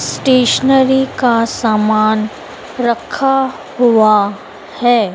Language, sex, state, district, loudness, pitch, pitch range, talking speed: Hindi, female, Madhya Pradesh, Dhar, -13 LUFS, 240 Hz, 215-265 Hz, 70 wpm